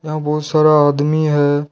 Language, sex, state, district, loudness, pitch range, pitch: Hindi, male, Jharkhand, Deoghar, -15 LUFS, 145-155 Hz, 150 Hz